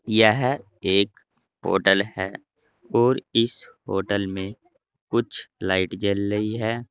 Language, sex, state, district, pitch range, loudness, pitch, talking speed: Hindi, male, Uttar Pradesh, Saharanpur, 95-115 Hz, -23 LUFS, 105 Hz, 115 wpm